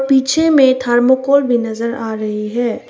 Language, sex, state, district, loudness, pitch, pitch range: Hindi, female, Arunachal Pradesh, Papum Pare, -14 LUFS, 245 Hz, 230-270 Hz